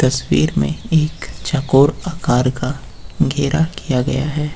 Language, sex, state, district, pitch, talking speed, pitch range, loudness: Hindi, male, Uttar Pradesh, Lucknow, 135 Hz, 130 wpm, 125-150 Hz, -18 LUFS